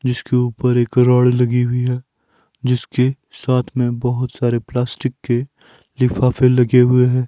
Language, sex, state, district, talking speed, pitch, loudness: Hindi, male, Himachal Pradesh, Shimla, 150 wpm, 125 Hz, -17 LUFS